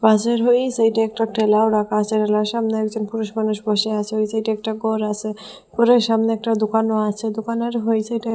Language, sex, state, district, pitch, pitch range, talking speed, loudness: Bengali, female, Assam, Hailakandi, 220 Hz, 215-225 Hz, 195 wpm, -20 LUFS